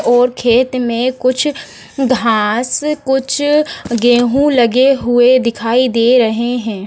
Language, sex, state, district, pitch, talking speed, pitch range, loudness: Hindi, female, Bihar, Gopalganj, 250 Hz, 115 wpm, 235-265 Hz, -13 LUFS